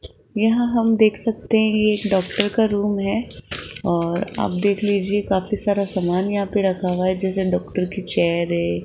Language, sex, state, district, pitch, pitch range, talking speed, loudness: Hindi, female, Rajasthan, Jaipur, 200 Hz, 185-210 Hz, 190 wpm, -20 LUFS